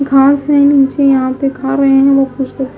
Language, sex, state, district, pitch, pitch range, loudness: Hindi, female, Himachal Pradesh, Shimla, 275 Hz, 270-280 Hz, -11 LUFS